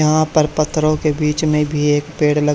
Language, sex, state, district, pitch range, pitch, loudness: Hindi, male, Haryana, Charkhi Dadri, 150-155 Hz, 150 Hz, -17 LUFS